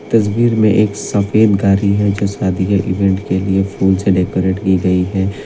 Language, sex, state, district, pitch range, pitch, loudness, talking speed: Hindi, male, Assam, Kamrup Metropolitan, 95-105 Hz, 100 Hz, -14 LUFS, 195 wpm